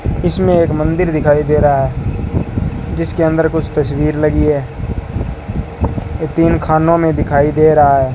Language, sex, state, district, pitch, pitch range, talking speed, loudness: Hindi, male, Rajasthan, Bikaner, 150 Hz, 115-160 Hz, 155 wpm, -14 LUFS